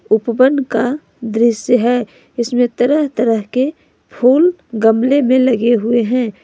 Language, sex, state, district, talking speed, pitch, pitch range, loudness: Hindi, female, Jharkhand, Ranchi, 130 wpm, 245 Hz, 230-260 Hz, -14 LUFS